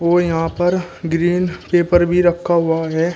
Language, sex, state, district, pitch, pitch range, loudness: Hindi, male, Uttar Pradesh, Shamli, 175 Hz, 165-175 Hz, -17 LUFS